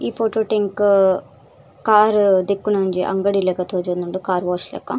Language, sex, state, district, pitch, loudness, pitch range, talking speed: Tulu, female, Karnataka, Dakshina Kannada, 195 Hz, -18 LUFS, 185-210 Hz, 145 wpm